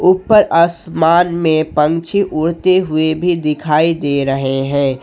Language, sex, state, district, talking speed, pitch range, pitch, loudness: Hindi, male, Jharkhand, Ranchi, 130 wpm, 150-170 Hz, 160 Hz, -14 LUFS